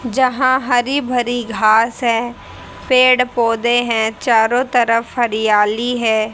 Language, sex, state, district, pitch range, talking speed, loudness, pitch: Hindi, female, Haryana, Charkhi Dadri, 225-250 Hz, 115 wpm, -15 LUFS, 240 Hz